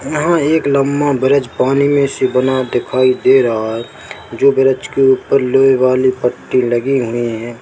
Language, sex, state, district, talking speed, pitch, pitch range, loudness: Hindi, male, Chhattisgarh, Bilaspur, 175 wpm, 130 Hz, 125-140 Hz, -14 LUFS